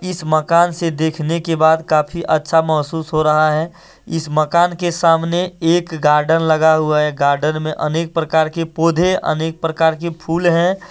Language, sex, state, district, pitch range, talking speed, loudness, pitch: Hindi, male, Jharkhand, Deoghar, 155-170 Hz, 175 wpm, -16 LUFS, 160 Hz